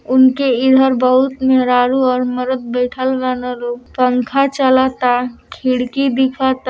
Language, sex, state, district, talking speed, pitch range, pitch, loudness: Hindi, female, Uttar Pradesh, Deoria, 135 wpm, 250-260 Hz, 255 Hz, -15 LUFS